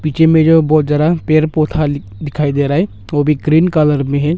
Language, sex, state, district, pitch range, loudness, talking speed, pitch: Hindi, male, Arunachal Pradesh, Longding, 145-160 Hz, -13 LUFS, 165 wpm, 155 Hz